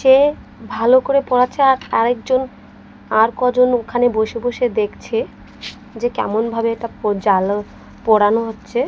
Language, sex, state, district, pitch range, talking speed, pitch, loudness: Bengali, female, Odisha, Malkangiri, 220-255 Hz, 135 wpm, 240 Hz, -17 LUFS